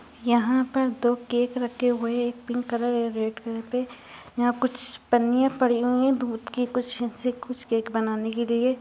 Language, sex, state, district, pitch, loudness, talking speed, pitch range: Hindi, female, Uttar Pradesh, Ghazipur, 245 Hz, -25 LUFS, 190 wpm, 235-250 Hz